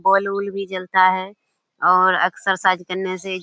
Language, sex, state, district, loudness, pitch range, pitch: Hindi, female, Bihar, Kishanganj, -19 LUFS, 185-195 Hz, 185 Hz